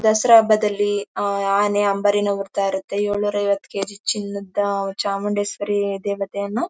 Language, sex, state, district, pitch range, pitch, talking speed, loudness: Kannada, female, Karnataka, Mysore, 200-205 Hz, 205 Hz, 115 wpm, -20 LUFS